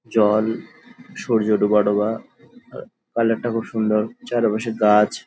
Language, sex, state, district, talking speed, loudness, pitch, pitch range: Bengali, male, West Bengal, Dakshin Dinajpur, 115 wpm, -20 LUFS, 110 Hz, 105-115 Hz